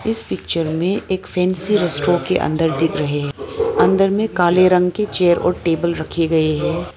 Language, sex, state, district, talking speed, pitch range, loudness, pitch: Hindi, female, Arunachal Pradesh, Lower Dibang Valley, 190 wpm, 165-195 Hz, -18 LUFS, 175 Hz